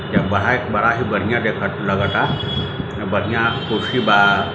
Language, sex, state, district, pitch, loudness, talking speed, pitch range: Hindi, male, Bihar, Gopalganj, 110 Hz, -18 LUFS, 120 wpm, 100-125 Hz